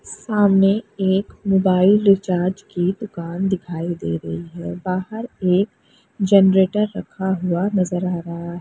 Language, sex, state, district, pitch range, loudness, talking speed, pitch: Hindi, female, Bihar, Gaya, 175-195 Hz, -20 LUFS, 130 wpm, 190 Hz